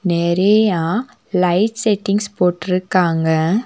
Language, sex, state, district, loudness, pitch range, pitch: Tamil, female, Tamil Nadu, Nilgiris, -17 LUFS, 175-210 Hz, 185 Hz